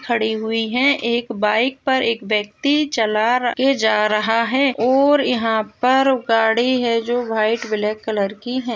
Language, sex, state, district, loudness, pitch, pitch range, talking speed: Hindi, female, Bihar, Jahanabad, -18 LUFS, 230 Hz, 220-255 Hz, 165 wpm